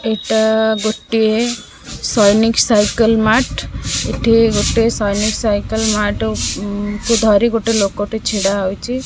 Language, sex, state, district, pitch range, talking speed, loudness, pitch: Odia, female, Odisha, Khordha, 205-225 Hz, 120 wpm, -15 LUFS, 220 Hz